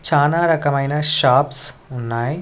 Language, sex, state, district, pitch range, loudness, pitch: Telugu, male, Andhra Pradesh, Sri Satya Sai, 130-150 Hz, -17 LUFS, 145 Hz